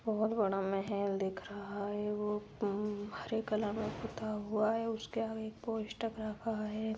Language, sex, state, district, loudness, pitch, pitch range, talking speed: Hindi, female, Bihar, Sitamarhi, -37 LUFS, 215 Hz, 205-220 Hz, 165 wpm